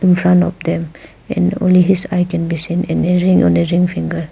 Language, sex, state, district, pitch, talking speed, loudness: English, female, Arunachal Pradesh, Papum Pare, 165 Hz, 250 wpm, -15 LUFS